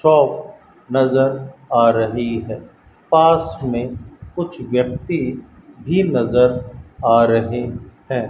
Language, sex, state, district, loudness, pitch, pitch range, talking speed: Hindi, male, Rajasthan, Bikaner, -18 LUFS, 125 Hz, 115-135 Hz, 100 wpm